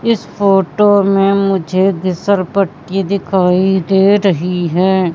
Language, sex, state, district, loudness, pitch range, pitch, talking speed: Hindi, female, Madhya Pradesh, Katni, -13 LUFS, 180-195 Hz, 190 Hz, 115 wpm